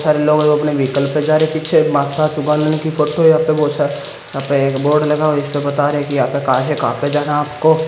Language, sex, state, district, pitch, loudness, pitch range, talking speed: Hindi, male, Haryana, Jhajjar, 150 Hz, -15 LUFS, 145-155 Hz, 230 wpm